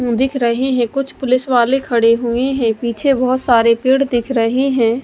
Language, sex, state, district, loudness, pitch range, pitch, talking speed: Hindi, female, Odisha, Malkangiri, -15 LUFS, 235-265 Hz, 245 Hz, 190 wpm